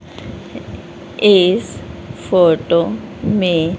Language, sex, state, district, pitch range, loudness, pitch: Hindi, female, Haryana, Rohtak, 170-200 Hz, -15 LUFS, 180 Hz